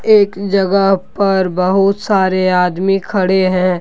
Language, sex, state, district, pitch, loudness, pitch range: Hindi, male, Jharkhand, Deoghar, 190 Hz, -14 LUFS, 185-200 Hz